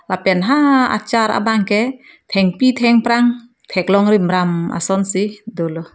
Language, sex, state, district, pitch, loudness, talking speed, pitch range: Karbi, female, Assam, Karbi Anglong, 210 Hz, -16 LUFS, 110 wpm, 190-235 Hz